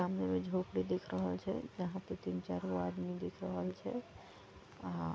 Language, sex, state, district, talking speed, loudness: Maithili, female, Bihar, Vaishali, 165 wpm, -40 LUFS